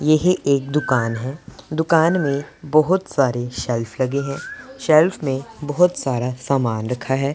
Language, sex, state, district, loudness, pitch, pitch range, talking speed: Hindi, male, Punjab, Pathankot, -20 LUFS, 140 Hz, 130-155 Hz, 145 wpm